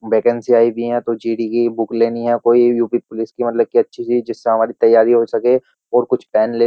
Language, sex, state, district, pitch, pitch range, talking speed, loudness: Hindi, male, Uttar Pradesh, Jyotiba Phule Nagar, 120 Hz, 115-120 Hz, 245 wpm, -16 LUFS